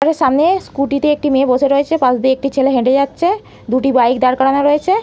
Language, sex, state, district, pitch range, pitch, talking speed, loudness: Bengali, female, West Bengal, Malda, 260-300 Hz, 275 Hz, 225 wpm, -14 LUFS